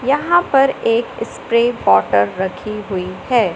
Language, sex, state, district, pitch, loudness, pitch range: Hindi, male, Madhya Pradesh, Katni, 230 Hz, -16 LUFS, 185-260 Hz